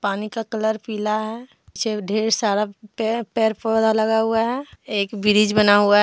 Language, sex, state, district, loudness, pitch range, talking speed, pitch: Hindi, female, Jharkhand, Deoghar, -21 LUFS, 210-225 Hz, 180 wpm, 220 Hz